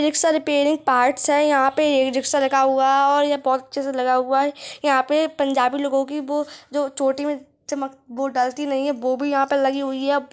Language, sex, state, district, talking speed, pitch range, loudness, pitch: Hindi, male, Chhattisgarh, Rajnandgaon, 215 wpm, 265-290 Hz, -20 LUFS, 275 Hz